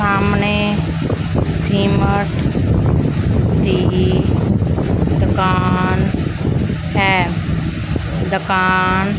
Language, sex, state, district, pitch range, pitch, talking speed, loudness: Punjabi, female, Punjab, Fazilka, 110-190 Hz, 160 Hz, 45 wpm, -16 LUFS